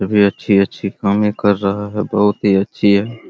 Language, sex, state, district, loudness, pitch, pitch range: Hindi, male, Bihar, Araria, -16 LUFS, 100 Hz, 100-105 Hz